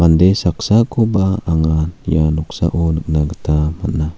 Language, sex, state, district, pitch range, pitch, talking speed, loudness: Garo, male, Meghalaya, South Garo Hills, 80-95 Hz, 85 Hz, 100 wpm, -16 LUFS